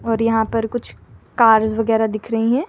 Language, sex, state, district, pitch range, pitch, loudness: Hindi, female, Madhya Pradesh, Bhopal, 220-230 Hz, 225 Hz, -18 LUFS